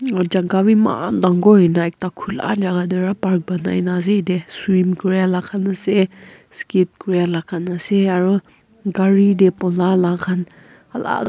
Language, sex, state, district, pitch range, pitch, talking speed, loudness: Nagamese, female, Nagaland, Kohima, 180-195 Hz, 185 Hz, 180 wpm, -17 LUFS